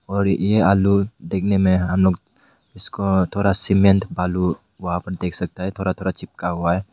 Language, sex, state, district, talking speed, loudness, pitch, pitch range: Hindi, male, Meghalaya, West Garo Hills, 180 wpm, -20 LUFS, 95 Hz, 90-100 Hz